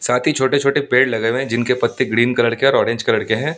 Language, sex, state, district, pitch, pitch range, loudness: Hindi, male, Delhi, New Delhi, 125 Hz, 120-140 Hz, -17 LUFS